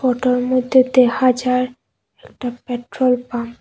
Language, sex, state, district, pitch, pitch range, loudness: Bengali, female, Assam, Hailakandi, 250 Hz, 245-255 Hz, -18 LUFS